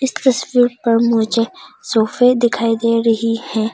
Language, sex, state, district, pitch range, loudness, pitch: Hindi, female, Arunachal Pradesh, Longding, 230-245 Hz, -16 LUFS, 230 Hz